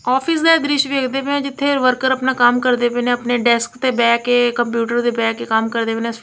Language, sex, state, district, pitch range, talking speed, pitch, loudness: Punjabi, female, Punjab, Kapurthala, 235-265 Hz, 250 wpm, 245 Hz, -16 LUFS